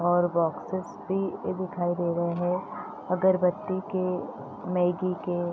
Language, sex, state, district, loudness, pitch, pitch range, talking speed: Hindi, female, Bihar, East Champaran, -28 LUFS, 180 Hz, 175-185 Hz, 120 wpm